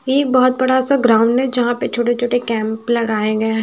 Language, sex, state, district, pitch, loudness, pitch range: Hindi, female, Maharashtra, Washim, 240 Hz, -16 LUFS, 225-255 Hz